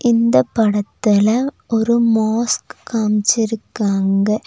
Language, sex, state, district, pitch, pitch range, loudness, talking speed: Tamil, female, Tamil Nadu, Nilgiris, 220 Hz, 205-230 Hz, -17 LUFS, 65 wpm